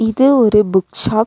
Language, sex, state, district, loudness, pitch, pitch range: Tamil, female, Tamil Nadu, Nilgiris, -13 LUFS, 220 Hz, 210-235 Hz